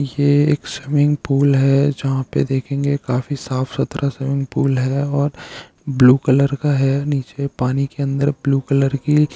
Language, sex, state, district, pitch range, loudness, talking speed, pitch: Hindi, male, Bihar, Araria, 135-145 Hz, -18 LUFS, 175 wpm, 140 Hz